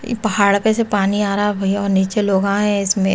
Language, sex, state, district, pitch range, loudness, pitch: Hindi, female, Chhattisgarh, Raipur, 195-210 Hz, -17 LUFS, 200 Hz